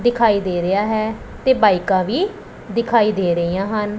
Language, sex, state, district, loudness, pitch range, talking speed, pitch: Punjabi, female, Punjab, Pathankot, -18 LUFS, 190-235 Hz, 165 wpm, 210 Hz